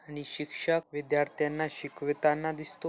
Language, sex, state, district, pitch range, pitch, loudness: Marathi, male, Maharashtra, Aurangabad, 145-155 Hz, 150 Hz, -31 LUFS